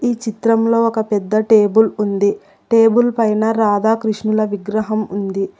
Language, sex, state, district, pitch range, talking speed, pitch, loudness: Telugu, female, Telangana, Hyderabad, 205-225 Hz, 120 wpm, 215 Hz, -16 LUFS